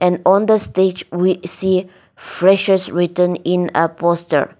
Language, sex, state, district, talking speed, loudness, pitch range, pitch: English, female, Nagaland, Dimapur, 130 wpm, -16 LUFS, 175-190 Hz, 180 Hz